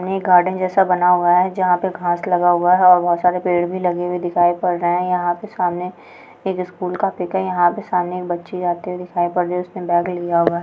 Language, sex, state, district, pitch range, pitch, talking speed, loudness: Hindi, female, Bihar, Bhagalpur, 175-180 Hz, 180 Hz, 265 wpm, -18 LUFS